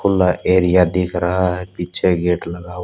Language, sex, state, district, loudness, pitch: Hindi, male, Haryana, Charkhi Dadri, -17 LUFS, 90 Hz